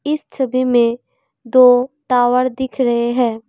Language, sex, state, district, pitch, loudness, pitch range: Hindi, female, Assam, Kamrup Metropolitan, 250 Hz, -15 LUFS, 240-260 Hz